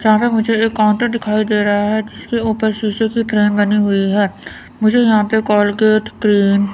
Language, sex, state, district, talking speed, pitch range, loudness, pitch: Hindi, female, Chandigarh, Chandigarh, 195 wpm, 205-220 Hz, -15 LUFS, 215 Hz